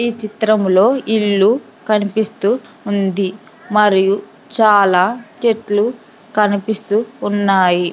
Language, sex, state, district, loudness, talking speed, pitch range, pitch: Telugu, female, Andhra Pradesh, Sri Satya Sai, -16 LUFS, 75 wpm, 200-220 Hz, 215 Hz